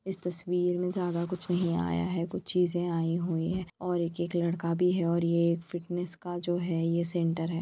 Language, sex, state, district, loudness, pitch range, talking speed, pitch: Hindi, female, Jharkhand, Sahebganj, -30 LUFS, 170-180 Hz, 220 wpm, 175 Hz